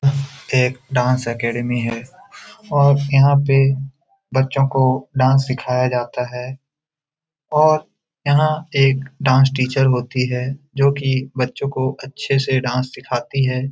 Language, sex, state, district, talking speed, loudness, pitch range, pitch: Hindi, male, Bihar, Jamui, 130 wpm, -18 LUFS, 125-140 Hz, 135 Hz